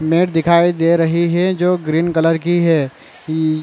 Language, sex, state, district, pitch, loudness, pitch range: Hindi, male, Chhattisgarh, Raigarh, 165 Hz, -15 LUFS, 160-175 Hz